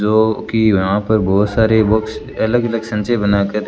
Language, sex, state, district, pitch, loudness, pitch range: Hindi, male, Rajasthan, Bikaner, 110 Hz, -15 LUFS, 105-110 Hz